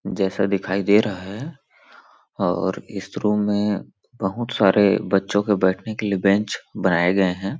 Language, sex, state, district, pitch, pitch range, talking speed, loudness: Hindi, male, Chhattisgarh, Sarguja, 100 Hz, 95-105 Hz, 165 wpm, -21 LUFS